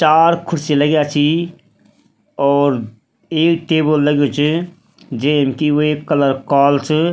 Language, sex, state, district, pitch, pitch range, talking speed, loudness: Hindi, male, Uttarakhand, Tehri Garhwal, 150 Hz, 140-160 Hz, 125 wpm, -15 LUFS